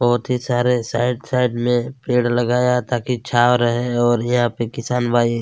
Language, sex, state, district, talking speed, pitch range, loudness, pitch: Hindi, male, Chhattisgarh, Kabirdham, 190 wpm, 120-125 Hz, -19 LUFS, 120 Hz